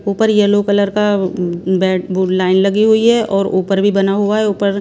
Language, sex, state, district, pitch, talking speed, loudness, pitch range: Hindi, female, Bihar, Patna, 200 Hz, 210 wpm, -14 LUFS, 190-205 Hz